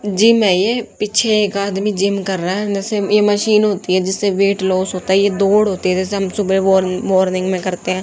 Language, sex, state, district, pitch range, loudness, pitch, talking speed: Hindi, female, Haryana, Jhajjar, 185-205 Hz, -16 LUFS, 195 Hz, 245 wpm